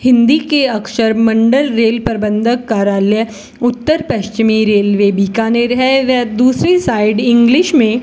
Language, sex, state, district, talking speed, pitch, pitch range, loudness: Hindi, female, Rajasthan, Bikaner, 135 wpm, 230 Hz, 220-250 Hz, -12 LUFS